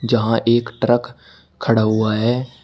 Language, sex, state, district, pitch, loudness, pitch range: Hindi, male, Uttar Pradesh, Shamli, 115 Hz, -18 LUFS, 110-120 Hz